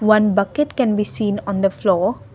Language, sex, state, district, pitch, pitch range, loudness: English, female, Assam, Kamrup Metropolitan, 210 Hz, 200-215 Hz, -18 LUFS